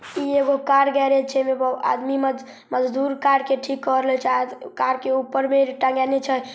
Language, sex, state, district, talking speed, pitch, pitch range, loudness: Maithili, female, Bihar, Samastipur, 200 wpm, 270 Hz, 260-275 Hz, -21 LUFS